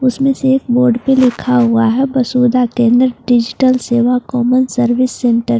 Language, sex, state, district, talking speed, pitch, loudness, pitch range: Hindi, female, Bihar, Katihar, 170 wpm, 250 Hz, -13 LUFS, 240-255 Hz